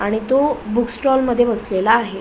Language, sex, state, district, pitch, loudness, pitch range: Marathi, female, Maharashtra, Solapur, 235 Hz, -17 LUFS, 215-255 Hz